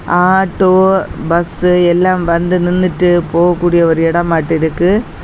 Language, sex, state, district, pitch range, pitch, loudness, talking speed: Tamil, female, Tamil Nadu, Kanyakumari, 170-185 Hz, 175 Hz, -12 LUFS, 125 wpm